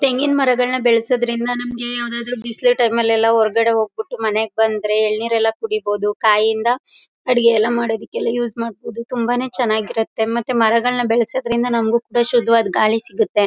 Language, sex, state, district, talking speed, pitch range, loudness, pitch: Kannada, female, Karnataka, Mysore, 140 wpm, 220-245 Hz, -17 LUFS, 235 Hz